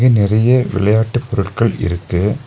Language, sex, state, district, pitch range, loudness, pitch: Tamil, male, Tamil Nadu, Nilgiris, 100-120 Hz, -15 LUFS, 110 Hz